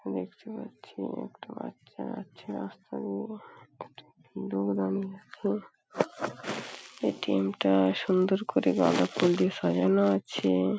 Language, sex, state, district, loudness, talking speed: Bengali, female, West Bengal, Paschim Medinipur, -29 LUFS, 80 wpm